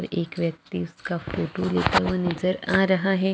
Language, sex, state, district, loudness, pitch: Hindi, female, Chhattisgarh, Jashpur, -25 LUFS, 175 Hz